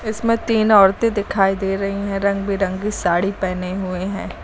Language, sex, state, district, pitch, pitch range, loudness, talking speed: Hindi, female, Uttar Pradesh, Lucknow, 200 Hz, 190-210 Hz, -19 LUFS, 175 wpm